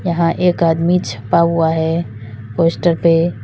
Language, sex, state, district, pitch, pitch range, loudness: Hindi, female, Uttar Pradesh, Lalitpur, 165 Hz, 160-170 Hz, -15 LUFS